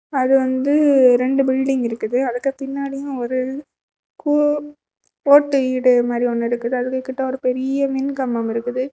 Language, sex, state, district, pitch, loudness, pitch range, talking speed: Tamil, female, Tamil Nadu, Kanyakumari, 260 Hz, -19 LUFS, 250-275 Hz, 135 wpm